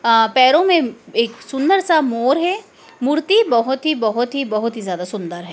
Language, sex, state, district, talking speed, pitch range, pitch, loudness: Hindi, female, Madhya Pradesh, Dhar, 195 wpm, 225-310 Hz, 255 Hz, -17 LUFS